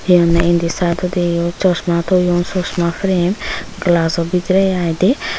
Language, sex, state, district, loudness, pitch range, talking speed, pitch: Chakma, female, Tripura, Unakoti, -16 LUFS, 170-185 Hz, 135 wpm, 180 Hz